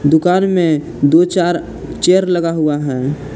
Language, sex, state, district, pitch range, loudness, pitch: Hindi, male, Jharkhand, Palamu, 145-180 Hz, -14 LUFS, 165 Hz